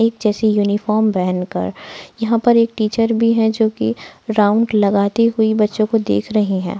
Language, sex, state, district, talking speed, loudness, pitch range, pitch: Hindi, female, Bihar, Araria, 185 wpm, -16 LUFS, 200-225 Hz, 215 Hz